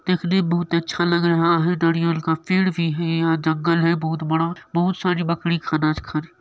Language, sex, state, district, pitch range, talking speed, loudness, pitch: Maithili, male, Bihar, Supaul, 165-175 Hz, 215 wpm, -21 LUFS, 170 Hz